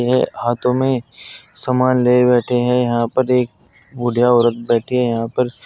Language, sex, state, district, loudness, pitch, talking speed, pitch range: Hindi, male, Uttar Pradesh, Saharanpur, -17 LUFS, 125 Hz, 170 wpm, 120-125 Hz